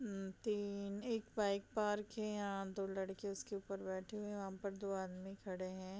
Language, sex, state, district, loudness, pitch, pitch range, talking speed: Hindi, female, Bihar, Gopalganj, -44 LUFS, 200 Hz, 195-205 Hz, 230 wpm